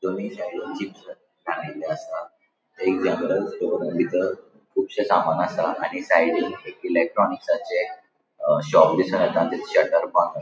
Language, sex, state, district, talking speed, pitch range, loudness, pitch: Konkani, male, Goa, North and South Goa, 145 wpm, 345-470 Hz, -23 LUFS, 385 Hz